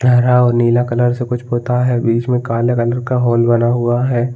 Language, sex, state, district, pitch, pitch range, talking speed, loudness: Hindi, male, Chhattisgarh, Balrampur, 120 Hz, 120-125 Hz, 235 wpm, -15 LUFS